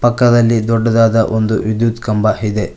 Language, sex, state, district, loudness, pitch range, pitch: Kannada, male, Karnataka, Koppal, -14 LUFS, 110-115 Hz, 115 Hz